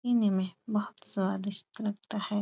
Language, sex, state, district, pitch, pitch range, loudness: Hindi, female, Uttar Pradesh, Etah, 205 Hz, 195-210 Hz, -32 LUFS